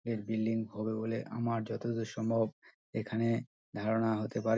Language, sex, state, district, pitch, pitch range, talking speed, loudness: Bengali, male, West Bengal, Dakshin Dinajpur, 115 Hz, 110-115 Hz, 155 wpm, -35 LUFS